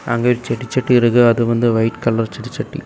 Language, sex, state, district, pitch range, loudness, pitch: Tamil, male, Tamil Nadu, Kanyakumari, 115-125 Hz, -16 LUFS, 120 Hz